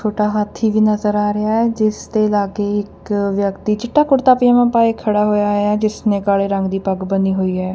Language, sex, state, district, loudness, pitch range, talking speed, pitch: Punjabi, female, Punjab, Kapurthala, -16 LUFS, 200-215 Hz, 225 wpm, 210 Hz